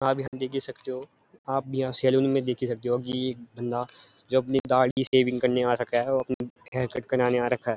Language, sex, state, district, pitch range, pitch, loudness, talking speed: Hindi, male, Uttarakhand, Uttarkashi, 125-130 Hz, 130 Hz, -26 LUFS, 255 wpm